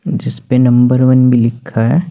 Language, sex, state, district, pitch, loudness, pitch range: Hindi, male, Chandigarh, Chandigarh, 125 Hz, -12 LUFS, 120-130 Hz